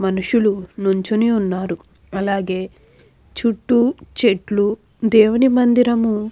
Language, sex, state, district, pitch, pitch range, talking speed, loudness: Telugu, female, Andhra Pradesh, Anantapur, 215 Hz, 195-230 Hz, 85 wpm, -18 LUFS